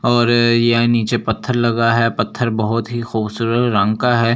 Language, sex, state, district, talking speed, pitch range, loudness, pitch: Hindi, male, Delhi, New Delhi, 205 wpm, 115-120 Hz, -16 LUFS, 115 Hz